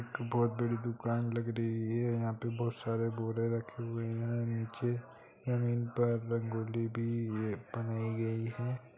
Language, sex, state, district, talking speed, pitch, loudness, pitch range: Hindi, male, Jharkhand, Jamtara, 160 wpm, 115 Hz, -35 LUFS, 115-120 Hz